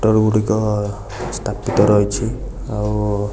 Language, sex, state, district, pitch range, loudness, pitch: Odia, male, Odisha, Nuapada, 105-110 Hz, -19 LUFS, 105 Hz